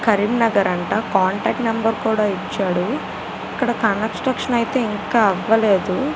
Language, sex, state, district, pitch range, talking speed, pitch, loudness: Telugu, female, Telangana, Karimnagar, 200-230 Hz, 115 wpm, 220 Hz, -19 LUFS